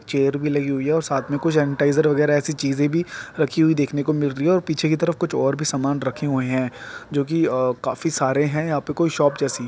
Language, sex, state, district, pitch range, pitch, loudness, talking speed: Hindi, male, Uttarakhand, Tehri Garhwal, 140-160 Hz, 145 Hz, -21 LUFS, 255 wpm